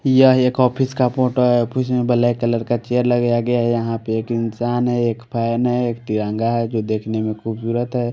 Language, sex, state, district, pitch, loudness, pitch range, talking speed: Hindi, male, Haryana, Rohtak, 120 Hz, -19 LUFS, 115-125 Hz, 220 wpm